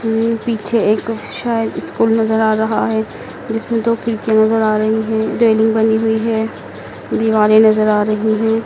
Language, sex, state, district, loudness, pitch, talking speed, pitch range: Hindi, female, Madhya Pradesh, Dhar, -15 LUFS, 220 Hz, 165 wpm, 220-225 Hz